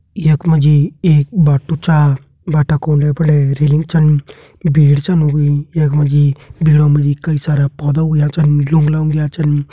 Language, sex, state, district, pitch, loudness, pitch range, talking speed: Hindi, male, Uttarakhand, Tehri Garhwal, 150 Hz, -13 LUFS, 145-155 Hz, 165 wpm